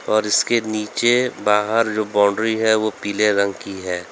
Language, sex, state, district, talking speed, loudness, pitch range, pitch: Hindi, male, Uttar Pradesh, Lalitpur, 175 wpm, -19 LUFS, 100-110 Hz, 105 Hz